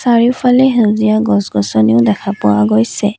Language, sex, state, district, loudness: Assamese, female, Assam, Kamrup Metropolitan, -12 LUFS